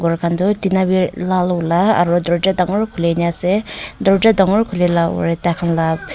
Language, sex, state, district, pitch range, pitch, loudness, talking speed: Nagamese, female, Nagaland, Kohima, 170-195 Hz, 180 Hz, -16 LUFS, 185 wpm